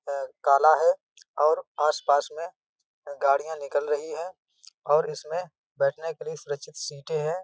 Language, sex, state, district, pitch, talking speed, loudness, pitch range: Hindi, male, Uttar Pradesh, Budaun, 150 Hz, 145 wpm, -26 LUFS, 145-175 Hz